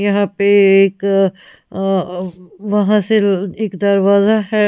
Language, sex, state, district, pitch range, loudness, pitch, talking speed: Hindi, female, Punjab, Pathankot, 195-205 Hz, -14 LUFS, 200 Hz, 140 wpm